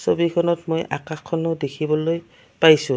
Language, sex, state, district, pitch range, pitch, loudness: Assamese, female, Assam, Kamrup Metropolitan, 155-165 Hz, 165 Hz, -21 LUFS